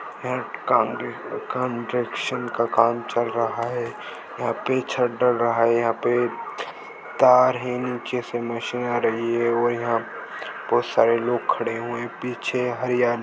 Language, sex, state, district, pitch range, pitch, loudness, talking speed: Hindi, male, Goa, North and South Goa, 115-125 Hz, 120 Hz, -23 LUFS, 155 wpm